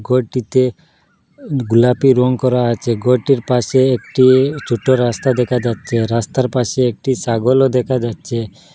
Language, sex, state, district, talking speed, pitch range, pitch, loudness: Bengali, male, Assam, Hailakandi, 125 wpm, 120-130 Hz, 125 Hz, -15 LUFS